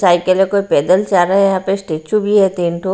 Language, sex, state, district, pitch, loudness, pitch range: Hindi, female, Haryana, Rohtak, 190 Hz, -14 LUFS, 175-195 Hz